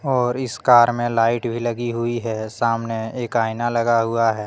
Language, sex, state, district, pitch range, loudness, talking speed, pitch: Hindi, male, Jharkhand, Deoghar, 115-120 Hz, -20 LUFS, 200 wpm, 115 Hz